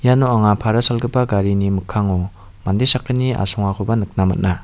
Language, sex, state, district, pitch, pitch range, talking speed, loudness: Garo, male, Meghalaya, West Garo Hills, 105 Hz, 95-120 Hz, 140 wpm, -17 LUFS